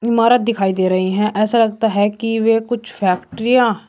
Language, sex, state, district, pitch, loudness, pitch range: Hindi, male, Uttar Pradesh, Shamli, 225 Hz, -16 LUFS, 205-235 Hz